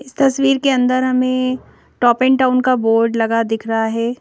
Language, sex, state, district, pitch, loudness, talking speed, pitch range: Hindi, female, Madhya Pradesh, Bhopal, 255 Hz, -16 LUFS, 200 wpm, 230-260 Hz